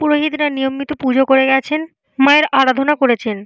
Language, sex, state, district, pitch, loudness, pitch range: Bengali, female, Jharkhand, Jamtara, 270 Hz, -15 LUFS, 265-295 Hz